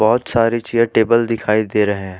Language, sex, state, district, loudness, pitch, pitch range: Hindi, male, Jharkhand, Ranchi, -16 LUFS, 115 Hz, 105-115 Hz